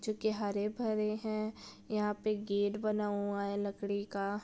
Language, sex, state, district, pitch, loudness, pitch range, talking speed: Hindi, female, Bihar, Saran, 210 Hz, -35 LUFS, 200-215 Hz, 175 wpm